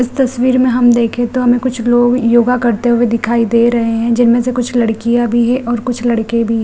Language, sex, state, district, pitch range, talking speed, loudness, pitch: Hindi, female, Bihar, Gaya, 235-245 Hz, 235 wpm, -13 LUFS, 240 Hz